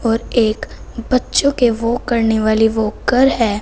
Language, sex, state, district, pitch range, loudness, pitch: Hindi, female, Punjab, Fazilka, 220-245 Hz, -16 LUFS, 230 Hz